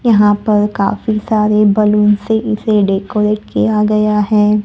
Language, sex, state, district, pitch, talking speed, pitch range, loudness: Hindi, female, Maharashtra, Gondia, 210 Hz, 140 wpm, 210-215 Hz, -13 LUFS